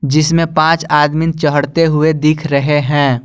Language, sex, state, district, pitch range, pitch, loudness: Hindi, male, Jharkhand, Garhwa, 145-160 Hz, 155 Hz, -13 LUFS